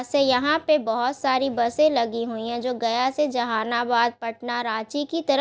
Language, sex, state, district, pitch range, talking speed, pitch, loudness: Hindi, female, Bihar, Gaya, 235-280 Hz, 190 wpm, 245 Hz, -23 LUFS